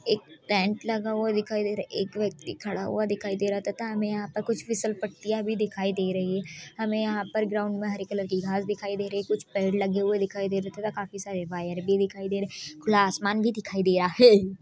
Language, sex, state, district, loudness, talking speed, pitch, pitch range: Hindi, female, Bihar, Purnia, -27 LUFS, 260 wpm, 200 Hz, 195-215 Hz